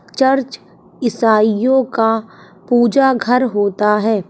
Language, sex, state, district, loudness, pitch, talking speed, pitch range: Hindi, female, Bihar, Saharsa, -15 LUFS, 225 Hz, 100 wpm, 210-255 Hz